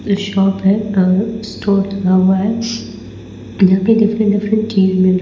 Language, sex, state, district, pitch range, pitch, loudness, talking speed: Hindi, female, Bihar, Patna, 190-215 Hz, 200 Hz, -14 LUFS, 150 wpm